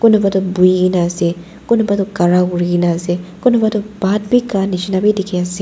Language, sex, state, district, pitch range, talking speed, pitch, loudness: Nagamese, female, Nagaland, Dimapur, 180-210 Hz, 170 wpm, 190 Hz, -15 LUFS